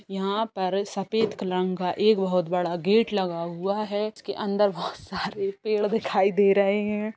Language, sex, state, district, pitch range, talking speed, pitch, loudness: Hindi, female, Bihar, Saran, 190-210 Hz, 175 wpm, 200 Hz, -25 LUFS